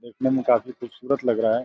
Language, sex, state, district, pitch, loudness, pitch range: Hindi, male, Uttar Pradesh, Deoria, 120 Hz, -23 LUFS, 120-130 Hz